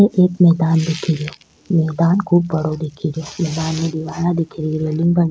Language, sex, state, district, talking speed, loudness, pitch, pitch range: Rajasthani, female, Rajasthan, Churu, 170 wpm, -18 LUFS, 165 Hz, 155-170 Hz